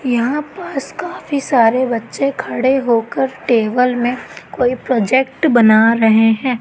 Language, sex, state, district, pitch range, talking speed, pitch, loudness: Hindi, female, Madhya Pradesh, Katni, 230-265 Hz, 125 wpm, 250 Hz, -15 LUFS